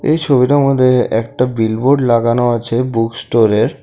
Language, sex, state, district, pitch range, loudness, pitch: Bengali, male, Assam, Kamrup Metropolitan, 115-130 Hz, -13 LUFS, 120 Hz